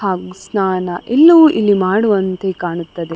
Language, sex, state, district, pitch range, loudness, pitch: Kannada, female, Karnataka, Dakshina Kannada, 180-215 Hz, -14 LUFS, 190 Hz